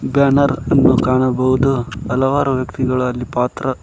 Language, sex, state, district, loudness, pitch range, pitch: Kannada, male, Karnataka, Koppal, -16 LUFS, 125-135 Hz, 130 Hz